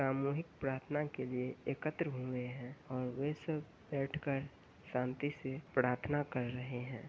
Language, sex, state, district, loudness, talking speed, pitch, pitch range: Hindi, male, Uttar Pradesh, Ghazipur, -39 LUFS, 145 wpm, 135 Hz, 125-145 Hz